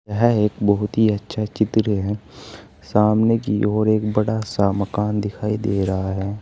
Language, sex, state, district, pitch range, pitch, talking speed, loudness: Hindi, male, Uttar Pradesh, Saharanpur, 100-110 Hz, 105 Hz, 170 wpm, -20 LUFS